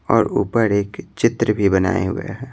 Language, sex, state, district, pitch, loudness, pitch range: Hindi, male, Bihar, Patna, 100 Hz, -19 LUFS, 95-115 Hz